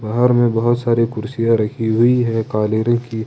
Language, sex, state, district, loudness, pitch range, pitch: Hindi, male, Jharkhand, Ranchi, -17 LUFS, 110-120 Hz, 115 Hz